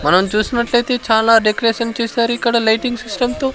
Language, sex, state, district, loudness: Telugu, male, Andhra Pradesh, Sri Satya Sai, -16 LUFS